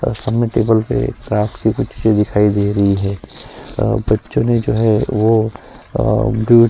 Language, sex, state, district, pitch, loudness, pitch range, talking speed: Hindi, female, Chhattisgarh, Sukma, 110 Hz, -16 LUFS, 105-115 Hz, 170 wpm